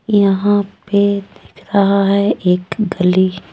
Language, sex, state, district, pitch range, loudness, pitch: Hindi, female, Jharkhand, Deoghar, 185-200 Hz, -15 LUFS, 200 Hz